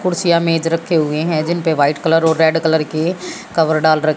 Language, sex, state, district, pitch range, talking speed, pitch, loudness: Hindi, female, Haryana, Jhajjar, 155-170 Hz, 200 wpm, 160 Hz, -16 LUFS